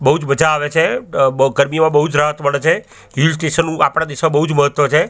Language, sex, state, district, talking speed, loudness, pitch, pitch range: Gujarati, male, Gujarat, Gandhinagar, 225 wpm, -15 LUFS, 150 Hz, 140-160 Hz